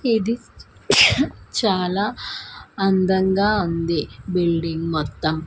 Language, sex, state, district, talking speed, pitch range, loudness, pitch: Telugu, female, Andhra Pradesh, Manyam, 65 wpm, 165-205 Hz, -20 LUFS, 185 Hz